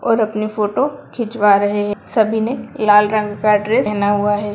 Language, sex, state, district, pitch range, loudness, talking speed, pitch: Hindi, female, Bihar, Sitamarhi, 205-220 Hz, -16 LUFS, 200 wpm, 210 Hz